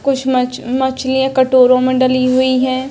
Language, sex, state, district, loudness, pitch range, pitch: Hindi, female, Uttar Pradesh, Hamirpur, -14 LUFS, 255-260 Hz, 260 Hz